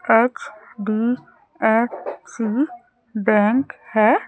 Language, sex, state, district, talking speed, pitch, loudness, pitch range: Hindi, female, Chhattisgarh, Raipur, 40 wpm, 230 Hz, -20 LUFS, 220-265 Hz